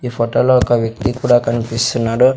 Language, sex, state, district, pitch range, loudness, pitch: Telugu, male, Andhra Pradesh, Sri Satya Sai, 115-125 Hz, -15 LUFS, 120 Hz